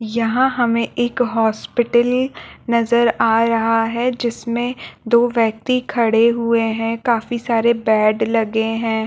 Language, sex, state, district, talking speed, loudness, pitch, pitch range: Hindi, female, Chhattisgarh, Balrampur, 125 wpm, -17 LUFS, 230 Hz, 225-240 Hz